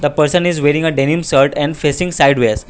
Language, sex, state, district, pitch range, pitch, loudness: English, male, Assam, Kamrup Metropolitan, 140-160 Hz, 150 Hz, -14 LUFS